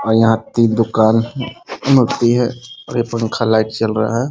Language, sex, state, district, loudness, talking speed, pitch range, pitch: Hindi, male, Bihar, Muzaffarpur, -16 LUFS, 180 wpm, 110-120 Hz, 115 Hz